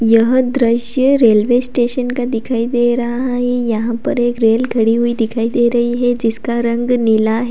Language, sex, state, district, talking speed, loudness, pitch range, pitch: Hindi, female, Uttar Pradesh, Lalitpur, 185 wpm, -15 LUFS, 230-245 Hz, 240 Hz